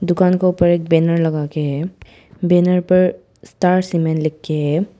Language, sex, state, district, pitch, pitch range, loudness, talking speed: Hindi, female, Arunachal Pradesh, Papum Pare, 175 Hz, 160-180 Hz, -17 LUFS, 180 wpm